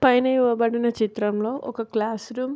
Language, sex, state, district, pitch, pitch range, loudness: Telugu, female, Andhra Pradesh, Anantapur, 235 Hz, 220-255 Hz, -23 LUFS